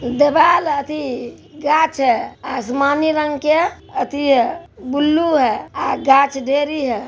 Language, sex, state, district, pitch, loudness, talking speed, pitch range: Hindi, male, Bihar, Araria, 290 Hz, -17 LUFS, 120 wpm, 270-310 Hz